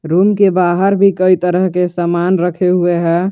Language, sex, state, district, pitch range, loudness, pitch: Hindi, male, Jharkhand, Garhwa, 175-185 Hz, -13 LUFS, 180 Hz